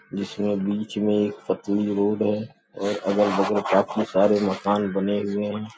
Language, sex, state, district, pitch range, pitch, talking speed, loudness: Hindi, male, Uttar Pradesh, Gorakhpur, 100-105 Hz, 105 Hz, 155 wpm, -23 LUFS